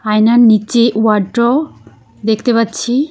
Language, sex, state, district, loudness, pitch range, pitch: Bengali, female, West Bengal, Cooch Behar, -12 LUFS, 215-240 Hz, 230 Hz